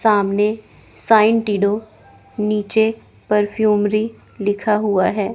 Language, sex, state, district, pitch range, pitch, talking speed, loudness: Hindi, female, Chandigarh, Chandigarh, 205-220 Hz, 210 Hz, 80 wpm, -18 LUFS